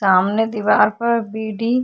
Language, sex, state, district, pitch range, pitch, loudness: Hindi, female, Uttarakhand, Tehri Garhwal, 210-230 Hz, 220 Hz, -18 LUFS